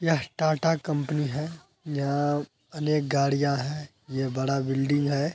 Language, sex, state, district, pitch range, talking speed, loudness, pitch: Hindi, male, Bihar, Araria, 140-150 Hz, 135 wpm, -27 LUFS, 145 Hz